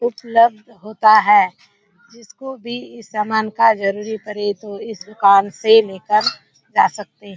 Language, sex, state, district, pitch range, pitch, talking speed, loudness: Hindi, female, Bihar, Kishanganj, 205-230 Hz, 215 Hz, 155 wpm, -16 LUFS